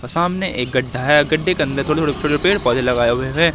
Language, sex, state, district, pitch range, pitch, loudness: Hindi, male, Madhya Pradesh, Katni, 130-165 Hz, 150 Hz, -17 LUFS